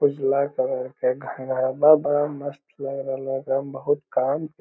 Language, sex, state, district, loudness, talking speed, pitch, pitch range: Magahi, male, Bihar, Lakhisarai, -23 LUFS, 170 wpm, 140 Hz, 135-145 Hz